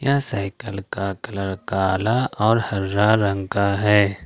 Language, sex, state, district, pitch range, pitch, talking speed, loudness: Hindi, male, Jharkhand, Ranchi, 100-110 Hz, 100 Hz, 140 wpm, -21 LUFS